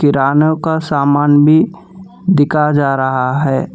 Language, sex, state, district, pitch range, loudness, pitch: Hindi, male, Telangana, Hyderabad, 140-160 Hz, -13 LUFS, 145 Hz